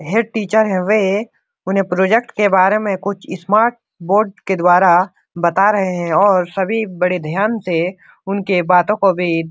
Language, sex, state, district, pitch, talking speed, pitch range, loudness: Hindi, male, Bihar, Supaul, 195 Hz, 165 wpm, 180-210 Hz, -16 LUFS